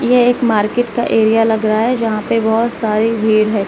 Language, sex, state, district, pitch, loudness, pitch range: Hindi, female, Uttar Pradesh, Lalitpur, 225 Hz, -14 LUFS, 215-235 Hz